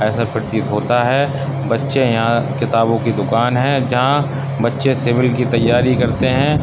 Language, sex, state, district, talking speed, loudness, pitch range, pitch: Hindi, male, Uttar Pradesh, Budaun, 155 wpm, -16 LUFS, 115-135 Hz, 125 Hz